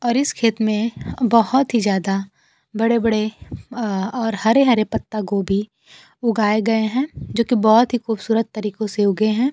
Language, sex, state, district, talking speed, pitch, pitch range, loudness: Hindi, female, Bihar, Kaimur, 145 wpm, 225 Hz, 210-235 Hz, -19 LUFS